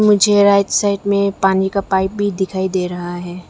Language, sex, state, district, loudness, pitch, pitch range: Hindi, female, Arunachal Pradesh, Lower Dibang Valley, -16 LUFS, 195 Hz, 190-200 Hz